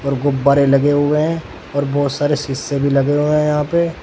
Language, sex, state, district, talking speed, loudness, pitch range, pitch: Hindi, male, Uttar Pradesh, Saharanpur, 210 wpm, -16 LUFS, 140-150 Hz, 145 Hz